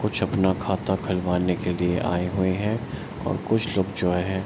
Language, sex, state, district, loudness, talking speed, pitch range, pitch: Hindi, male, Bihar, Araria, -25 LUFS, 200 wpm, 90-100 Hz, 95 Hz